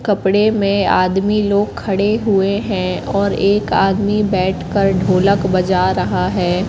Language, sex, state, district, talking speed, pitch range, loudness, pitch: Hindi, female, Madhya Pradesh, Katni, 135 wpm, 185-205 Hz, -16 LUFS, 195 Hz